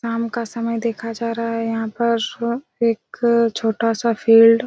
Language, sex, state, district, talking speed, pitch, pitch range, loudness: Hindi, female, Chhattisgarh, Raigarh, 180 wpm, 230 Hz, 230-235 Hz, -20 LUFS